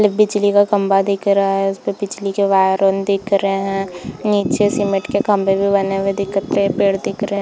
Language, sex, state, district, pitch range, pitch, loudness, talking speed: Hindi, female, Chhattisgarh, Bilaspur, 195-205 Hz, 200 Hz, -17 LUFS, 225 wpm